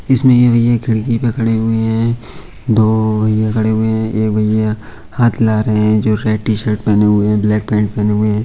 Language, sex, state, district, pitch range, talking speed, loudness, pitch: Hindi, male, Uttar Pradesh, Budaun, 105-115 Hz, 215 wpm, -14 LUFS, 110 Hz